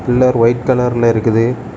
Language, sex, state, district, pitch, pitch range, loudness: Tamil, male, Tamil Nadu, Kanyakumari, 120 Hz, 115-125 Hz, -13 LUFS